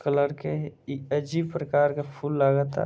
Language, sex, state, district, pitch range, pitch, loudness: Bhojpuri, male, Bihar, Gopalganj, 140-150 Hz, 145 Hz, -27 LUFS